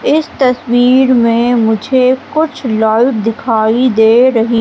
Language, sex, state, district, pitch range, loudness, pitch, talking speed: Hindi, female, Madhya Pradesh, Katni, 225-260 Hz, -11 LUFS, 245 Hz, 115 wpm